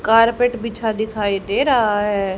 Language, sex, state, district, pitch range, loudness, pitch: Hindi, female, Haryana, Jhajjar, 205-230 Hz, -18 LUFS, 220 Hz